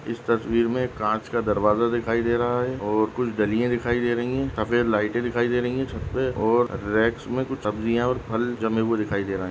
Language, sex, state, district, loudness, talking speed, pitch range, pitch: Hindi, male, Goa, North and South Goa, -24 LUFS, 245 wpm, 110-120 Hz, 115 Hz